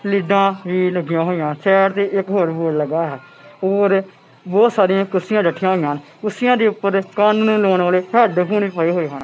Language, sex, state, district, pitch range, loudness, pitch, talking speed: Punjabi, male, Punjab, Kapurthala, 170-200 Hz, -17 LUFS, 190 Hz, 215 wpm